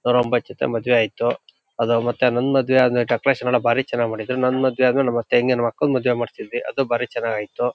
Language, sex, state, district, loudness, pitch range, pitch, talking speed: Kannada, male, Karnataka, Shimoga, -20 LUFS, 120-130 Hz, 125 Hz, 210 wpm